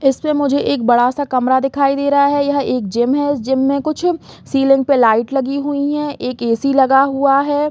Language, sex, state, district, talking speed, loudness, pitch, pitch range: Hindi, female, Chhattisgarh, Raigarh, 220 wpm, -15 LUFS, 275 Hz, 260-285 Hz